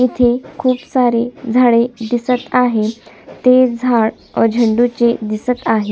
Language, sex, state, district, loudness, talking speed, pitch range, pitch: Marathi, female, Maharashtra, Sindhudurg, -15 LUFS, 120 wpm, 225-250 Hz, 240 Hz